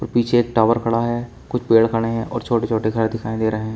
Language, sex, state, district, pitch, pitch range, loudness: Hindi, male, Uttar Pradesh, Shamli, 115 Hz, 110-120 Hz, -19 LUFS